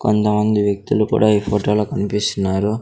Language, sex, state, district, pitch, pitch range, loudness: Telugu, male, Andhra Pradesh, Sri Satya Sai, 105 Hz, 100-105 Hz, -18 LUFS